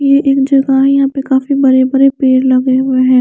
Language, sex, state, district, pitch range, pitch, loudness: Hindi, female, Chandigarh, Chandigarh, 260-275 Hz, 270 Hz, -10 LUFS